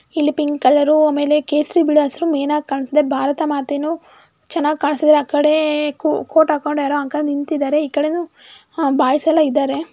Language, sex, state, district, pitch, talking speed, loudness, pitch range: Kannada, female, Karnataka, Mysore, 300 Hz, 155 wpm, -17 LUFS, 290-310 Hz